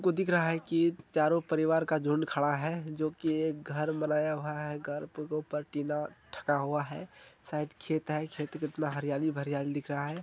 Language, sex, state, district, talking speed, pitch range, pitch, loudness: Hindi, male, Bihar, Supaul, 205 wpm, 150-160 Hz, 155 Hz, -32 LUFS